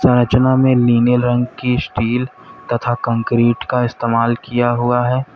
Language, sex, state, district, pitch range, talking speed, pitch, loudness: Hindi, male, Uttar Pradesh, Lalitpur, 120-125 Hz, 135 wpm, 120 Hz, -16 LUFS